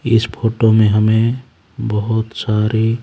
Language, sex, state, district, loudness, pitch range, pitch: Hindi, male, Haryana, Charkhi Dadri, -16 LUFS, 110-115 Hz, 110 Hz